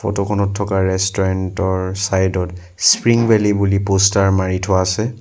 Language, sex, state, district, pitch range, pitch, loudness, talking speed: Assamese, male, Assam, Sonitpur, 95-100 Hz, 95 Hz, -16 LUFS, 160 wpm